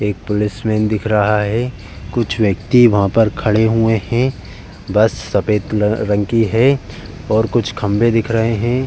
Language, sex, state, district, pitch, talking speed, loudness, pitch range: Hindi, male, Uttar Pradesh, Jalaun, 110 Hz, 155 wpm, -16 LUFS, 105-115 Hz